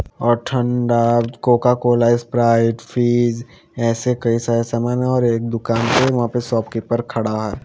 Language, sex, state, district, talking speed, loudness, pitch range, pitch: Hindi, female, Haryana, Charkhi Dadri, 155 wpm, -18 LUFS, 115-120 Hz, 120 Hz